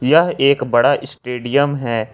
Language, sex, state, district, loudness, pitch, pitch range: Hindi, male, Jharkhand, Ranchi, -16 LUFS, 135 Hz, 120-140 Hz